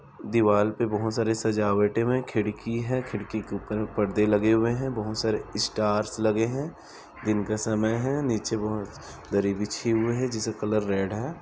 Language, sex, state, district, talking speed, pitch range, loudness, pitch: Hindi, male, Chhattisgarh, Bilaspur, 185 wpm, 105-115 Hz, -26 LUFS, 110 Hz